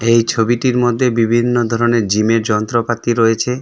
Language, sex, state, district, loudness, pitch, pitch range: Bengali, male, West Bengal, Darjeeling, -15 LUFS, 115 Hz, 115-120 Hz